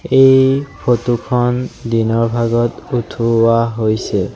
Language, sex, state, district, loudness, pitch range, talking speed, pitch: Assamese, male, Assam, Sonitpur, -15 LUFS, 115-125 Hz, 95 wpm, 120 Hz